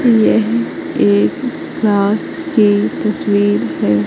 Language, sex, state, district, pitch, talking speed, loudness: Hindi, female, Madhya Pradesh, Katni, 205 Hz, 90 wpm, -15 LUFS